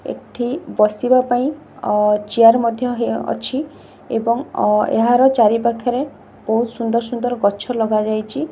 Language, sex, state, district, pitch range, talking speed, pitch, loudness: Odia, female, Odisha, Khordha, 220-250 Hz, 125 wpm, 235 Hz, -17 LUFS